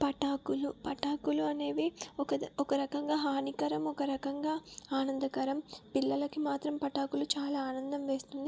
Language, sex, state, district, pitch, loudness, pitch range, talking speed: Telugu, female, Telangana, Nalgonda, 280 Hz, -35 LUFS, 270-285 Hz, 115 wpm